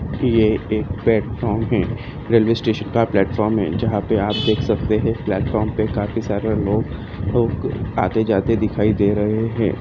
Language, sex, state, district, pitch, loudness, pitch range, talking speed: Hindi, female, Jharkhand, Jamtara, 110 Hz, -19 LUFS, 105-115 Hz, 155 wpm